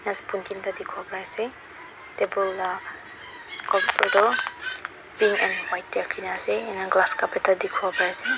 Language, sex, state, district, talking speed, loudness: Nagamese, female, Mizoram, Aizawl, 145 wpm, -25 LUFS